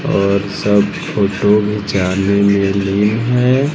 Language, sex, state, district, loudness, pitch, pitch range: Hindi, male, Bihar, West Champaran, -15 LUFS, 100 Hz, 100-105 Hz